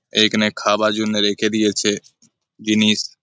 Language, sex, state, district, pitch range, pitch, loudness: Bengali, male, West Bengal, Malda, 105-110 Hz, 110 Hz, -18 LUFS